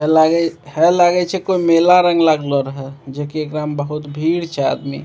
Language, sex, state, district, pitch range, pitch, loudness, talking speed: Maithili, male, Bihar, Begusarai, 145-170 Hz, 155 Hz, -16 LUFS, 215 wpm